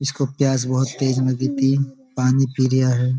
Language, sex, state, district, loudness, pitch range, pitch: Hindi, male, Uttar Pradesh, Budaun, -20 LUFS, 130-135 Hz, 130 Hz